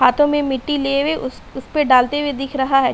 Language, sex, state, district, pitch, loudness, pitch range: Hindi, female, Uttar Pradesh, Hamirpur, 275 Hz, -18 LUFS, 260-290 Hz